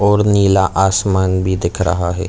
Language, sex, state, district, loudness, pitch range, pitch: Hindi, male, Chhattisgarh, Bilaspur, -15 LUFS, 95-100 Hz, 95 Hz